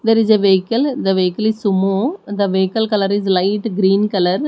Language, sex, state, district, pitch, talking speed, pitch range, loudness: English, female, Odisha, Nuapada, 205 Hz, 200 wpm, 190-220 Hz, -16 LUFS